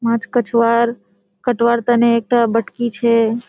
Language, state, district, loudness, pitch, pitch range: Surjapuri, Bihar, Kishanganj, -16 LUFS, 235 Hz, 230-235 Hz